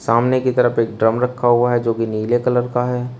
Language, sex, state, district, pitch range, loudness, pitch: Hindi, male, Uttar Pradesh, Shamli, 115-125 Hz, -17 LUFS, 120 Hz